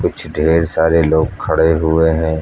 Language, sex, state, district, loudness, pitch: Hindi, male, Uttar Pradesh, Lucknow, -14 LUFS, 80 Hz